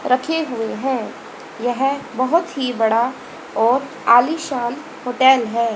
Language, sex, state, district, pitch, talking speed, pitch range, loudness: Hindi, female, Haryana, Jhajjar, 255 Hz, 115 wpm, 235-270 Hz, -19 LUFS